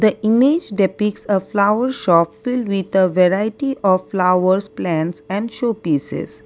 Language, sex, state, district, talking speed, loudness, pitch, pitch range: English, female, Assam, Kamrup Metropolitan, 140 wpm, -18 LUFS, 200 Hz, 185-225 Hz